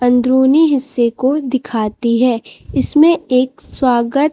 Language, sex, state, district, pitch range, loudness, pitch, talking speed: Hindi, female, Chhattisgarh, Raipur, 240-280 Hz, -14 LUFS, 255 Hz, 110 wpm